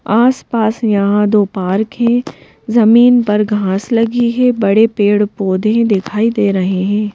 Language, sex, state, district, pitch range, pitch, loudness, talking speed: Hindi, female, Madhya Pradesh, Bhopal, 205-235 Hz, 215 Hz, -13 LUFS, 150 wpm